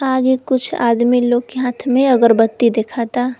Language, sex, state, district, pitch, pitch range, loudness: Bhojpuri, female, Uttar Pradesh, Varanasi, 245 Hz, 235-260 Hz, -15 LUFS